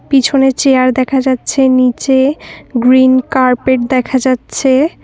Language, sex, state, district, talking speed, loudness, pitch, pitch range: Bengali, female, West Bengal, Cooch Behar, 105 wpm, -11 LUFS, 260 Hz, 255-270 Hz